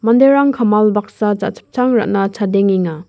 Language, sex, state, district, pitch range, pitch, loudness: Garo, female, Meghalaya, West Garo Hills, 200-235 Hz, 210 Hz, -14 LUFS